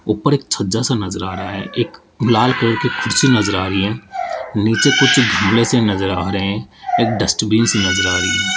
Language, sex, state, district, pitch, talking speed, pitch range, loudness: Hindi, male, Rajasthan, Jaipur, 110 Hz, 215 wpm, 100-125 Hz, -16 LUFS